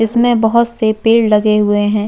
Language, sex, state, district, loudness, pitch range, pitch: Hindi, female, Chhattisgarh, Jashpur, -12 LUFS, 210-230 Hz, 220 Hz